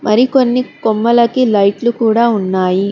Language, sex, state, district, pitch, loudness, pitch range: Telugu, female, Telangana, Hyderabad, 230 Hz, -13 LUFS, 200-240 Hz